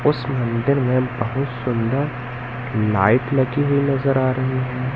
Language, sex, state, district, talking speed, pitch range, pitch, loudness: Hindi, male, Madhya Pradesh, Katni, 145 wpm, 120-135 Hz, 130 Hz, -20 LUFS